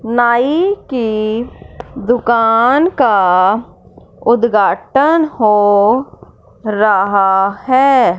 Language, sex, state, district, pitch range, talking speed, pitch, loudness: Hindi, female, Punjab, Fazilka, 205-255 Hz, 60 wpm, 230 Hz, -12 LUFS